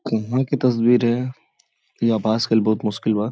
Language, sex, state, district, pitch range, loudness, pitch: Bhojpuri, male, Uttar Pradesh, Gorakhpur, 110-125 Hz, -20 LUFS, 115 Hz